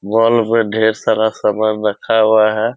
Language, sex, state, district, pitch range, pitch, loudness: Hindi, male, Bihar, Purnia, 110-115 Hz, 110 Hz, -14 LUFS